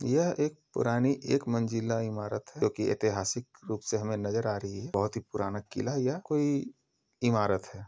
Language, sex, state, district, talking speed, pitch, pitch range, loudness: Hindi, male, Uttar Pradesh, Jalaun, 190 wpm, 115 Hz, 105-130 Hz, -31 LUFS